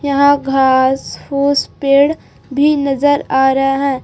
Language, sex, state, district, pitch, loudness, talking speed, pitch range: Hindi, female, Chhattisgarh, Raipur, 275 Hz, -13 LUFS, 135 wpm, 270-285 Hz